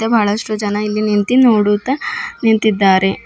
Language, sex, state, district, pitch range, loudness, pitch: Kannada, female, Karnataka, Bidar, 205-235 Hz, -15 LUFS, 215 Hz